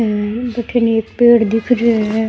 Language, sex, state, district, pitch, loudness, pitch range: Rajasthani, female, Rajasthan, Churu, 225 Hz, -15 LUFS, 220-240 Hz